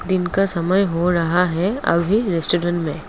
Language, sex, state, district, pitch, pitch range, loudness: Hindi, female, Assam, Kamrup Metropolitan, 175 Hz, 170-190 Hz, -18 LUFS